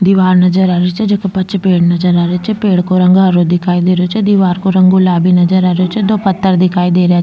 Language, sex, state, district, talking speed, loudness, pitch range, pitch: Rajasthani, female, Rajasthan, Nagaur, 275 wpm, -11 LUFS, 180-190 Hz, 185 Hz